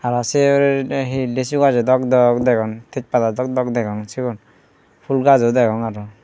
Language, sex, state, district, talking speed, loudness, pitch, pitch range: Chakma, male, Tripura, Unakoti, 200 wpm, -17 LUFS, 125 Hz, 120-135 Hz